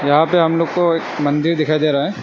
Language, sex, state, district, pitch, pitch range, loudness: Hindi, male, Arunachal Pradesh, Lower Dibang Valley, 155 Hz, 150-165 Hz, -16 LUFS